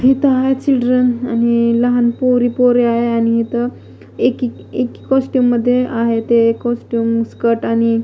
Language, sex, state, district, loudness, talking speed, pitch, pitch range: Marathi, female, Maharashtra, Mumbai Suburban, -15 LUFS, 140 wpm, 240 Hz, 230-250 Hz